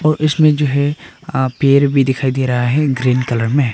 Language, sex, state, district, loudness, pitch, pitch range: Hindi, male, Arunachal Pradesh, Papum Pare, -15 LUFS, 140 Hz, 130-150 Hz